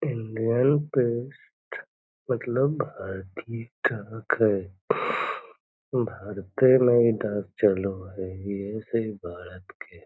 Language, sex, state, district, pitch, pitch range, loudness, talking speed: Magahi, male, Bihar, Lakhisarai, 110 Hz, 100-125 Hz, -26 LUFS, 100 wpm